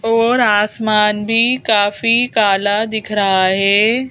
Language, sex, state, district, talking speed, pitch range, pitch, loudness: Hindi, female, Madhya Pradesh, Bhopal, 115 wpm, 205-230 Hz, 215 Hz, -14 LUFS